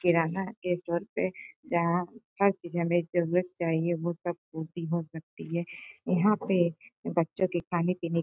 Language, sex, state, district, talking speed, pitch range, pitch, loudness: Hindi, female, Uttar Pradesh, Gorakhpur, 180 wpm, 170-180 Hz, 175 Hz, -30 LUFS